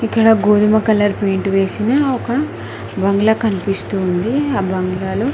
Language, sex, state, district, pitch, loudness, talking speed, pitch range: Telugu, female, Telangana, Mahabubabad, 210 Hz, -16 LUFS, 110 wpm, 195-225 Hz